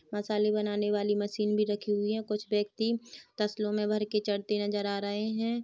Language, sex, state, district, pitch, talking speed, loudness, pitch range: Hindi, female, Chhattisgarh, Rajnandgaon, 210 Hz, 215 wpm, -31 LUFS, 205-215 Hz